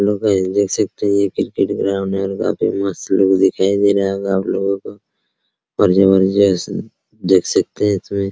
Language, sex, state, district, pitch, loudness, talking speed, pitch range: Hindi, male, Bihar, Araria, 100 Hz, -16 LUFS, 185 wpm, 95-100 Hz